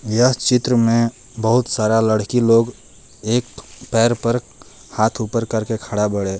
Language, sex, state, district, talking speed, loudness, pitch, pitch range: Bhojpuri, male, Jharkhand, Palamu, 140 wpm, -18 LUFS, 115 Hz, 110-120 Hz